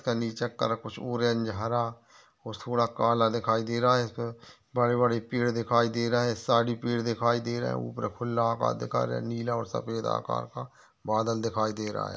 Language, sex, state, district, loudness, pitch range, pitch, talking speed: Hindi, male, Uttar Pradesh, Jyotiba Phule Nagar, -28 LUFS, 110-120 Hz, 115 Hz, 185 wpm